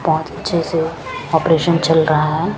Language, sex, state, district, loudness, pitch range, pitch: Hindi, female, Chandigarh, Chandigarh, -16 LUFS, 160-170 Hz, 160 Hz